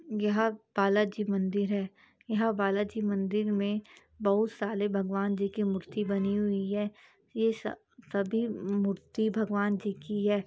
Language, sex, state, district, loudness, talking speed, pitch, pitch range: Hindi, female, Chhattisgarh, Bastar, -30 LUFS, 145 wpm, 205 Hz, 200-215 Hz